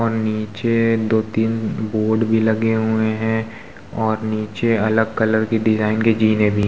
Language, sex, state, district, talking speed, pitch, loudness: Hindi, male, Uttar Pradesh, Muzaffarnagar, 170 wpm, 110 Hz, -19 LUFS